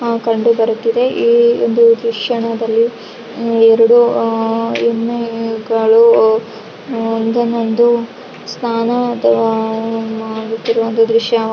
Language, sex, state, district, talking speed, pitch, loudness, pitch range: Kannada, female, Karnataka, Raichur, 70 wpm, 230 Hz, -14 LUFS, 225-235 Hz